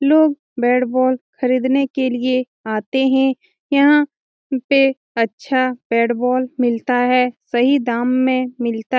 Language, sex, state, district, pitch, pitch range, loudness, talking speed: Hindi, female, Bihar, Lakhisarai, 255 Hz, 245-265 Hz, -17 LUFS, 145 wpm